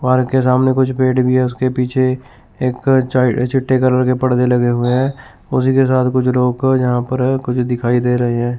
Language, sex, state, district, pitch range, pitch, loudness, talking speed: Hindi, male, Chandigarh, Chandigarh, 125-130 Hz, 130 Hz, -15 LUFS, 215 wpm